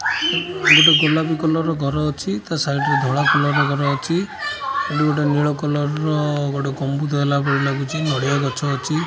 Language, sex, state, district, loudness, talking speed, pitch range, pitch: Odia, male, Odisha, Khordha, -18 LUFS, 165 wpm, 140-160 Hz, 150 Hz